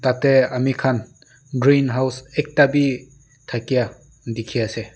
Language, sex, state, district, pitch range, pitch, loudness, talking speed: Nagamese, male, Nagaland, Dimapur, 125-140 Hz, 130 Hz, -20 LUFS, 95 wpm